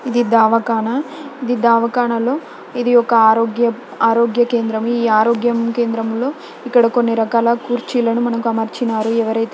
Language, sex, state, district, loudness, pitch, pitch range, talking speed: Telugu, female, Telangana, Nalgonda, -16 LUFS, 235 Hz, 230-240 Hz, 145 wpm